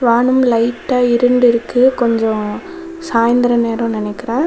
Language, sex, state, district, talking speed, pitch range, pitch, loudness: Tamil, female, Tamil Nadu, Kanyakumari, 105 wpm, 230-250 Hz, 240 Hz, -14 LUFS